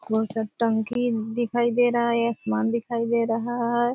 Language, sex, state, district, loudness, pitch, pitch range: Hindi, female, Bihar, Purnia, -24 LUFS, 235 Hz, 225-240 Hz